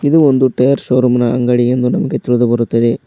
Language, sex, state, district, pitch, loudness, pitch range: Kannada, male, Karnataka, Koppal, 125 Hz, -13 LUFS, 120-130 Hz